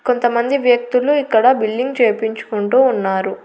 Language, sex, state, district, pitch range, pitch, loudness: Telugu, female, Andhra Pradesh, Annamaya, 220-255 Hz, 240 Hz, -16 LUFS